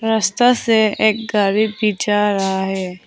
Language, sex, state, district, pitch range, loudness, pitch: Hindi, female, Arunachal Pradesh, Papum Pare, 195-220 Hz, -17 LUFS, 210 Hz